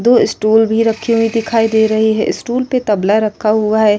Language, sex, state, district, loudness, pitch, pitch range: Hindi, female, Uttar Pradesh, Etah, -14 LUFS, 220 Hz, 215-230 Hz